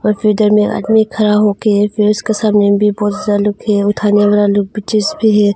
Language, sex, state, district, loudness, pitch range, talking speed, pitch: Hindi, female, Arunachal Pradesh, Longding, -13 LUFS, 205-215 Hz, 120 wpm, 210 Hz